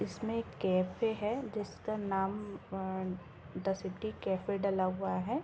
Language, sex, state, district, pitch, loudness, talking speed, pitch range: Hindi, female, Uttar Pradesh, Ghazipur, 195 Hz, -36 LUFS, 145 wpm, 185-215 Hz